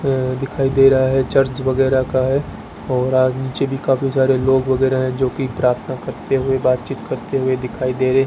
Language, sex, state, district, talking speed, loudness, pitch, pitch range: Hindi, female, Rajasthan, Bikaner, 210 wpm, -18 LUFS, 130 Hz, 130-135 Hz